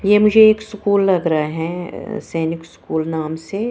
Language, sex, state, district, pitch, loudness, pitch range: Hindi, female, Punjab, Kapurthala, 175 Hz, -18 LUFS, 160-210 Hz